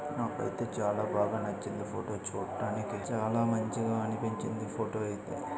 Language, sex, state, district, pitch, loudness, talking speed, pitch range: Telugu, male, Karnataka, Gulbarga, 110 Hz, -34 LUFS, 120 wpm, 105-115 Hz